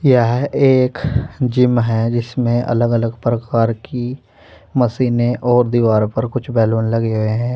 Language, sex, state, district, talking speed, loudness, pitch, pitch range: Hindi, male, Uttar Pradesh, Saharanpur, 145 wpm, -17 LUFS, 120 Hz, 115-125 Hz